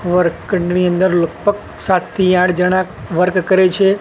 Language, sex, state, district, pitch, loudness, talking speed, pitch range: Gujarati, male, Gujarat, Gandhinagar, 185 Hz, -15 LUFS, 135 wpm, 180-190 Hz